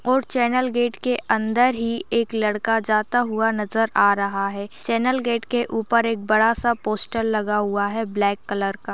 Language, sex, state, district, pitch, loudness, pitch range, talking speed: Hindi, female, Bihar, Jamui, 225 Hz, -21 LUFS, 210-240 Hz, 190 wpm